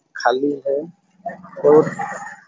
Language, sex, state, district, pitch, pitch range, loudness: Hindi, male, Chhattisgarh, Raigarh, 165 Hz, 145-195 Hz, -18 LUFS